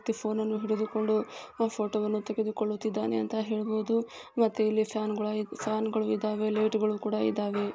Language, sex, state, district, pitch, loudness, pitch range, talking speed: Kannada, female, Karnataka, Gulbarga, 215 Hz, -30 LUFS, 215-220 Hz, 130 wpm